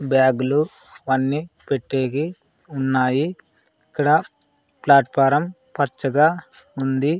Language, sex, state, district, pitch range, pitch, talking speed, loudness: Telugu, male, Andhra Pradesh, Sri Satya Sai, 135-160 Hz, 140 Hz, 65 wpm, -20 LUFS